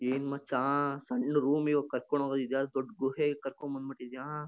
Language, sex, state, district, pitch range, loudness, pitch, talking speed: Kannada, male, Karnataka, Shimoga, 135-145 Hz, -32 LUFS, 140 Hz, 185 wpm